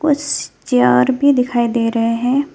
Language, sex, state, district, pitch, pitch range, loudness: Hindi, female, West Bengal, Alipurduar, 245 Hz, 230-285 Hz, -15 LUFS